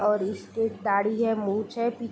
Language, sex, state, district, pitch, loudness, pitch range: Hindi, female, Bihar, Gopalganj, 215 Hz, -27 LUFS, 205-225 Hz